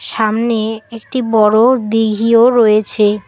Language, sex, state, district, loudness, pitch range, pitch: Bengali, female, West Bengal, Alipurduar, -13 LUFS, 215-230 Hz, 225 Hz